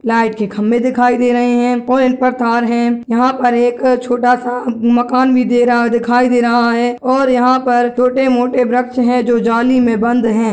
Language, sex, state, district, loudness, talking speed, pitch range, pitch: Angika, female, Bihar, Madhepura, -13 LUFS, 205 wpm, 235-250 Hz, 245 Hz